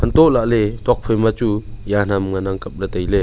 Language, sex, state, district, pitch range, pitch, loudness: Wancho, male, Arunachal Pradesh, Longding, 95-115 Hz, 105 Hz, -18 LUFS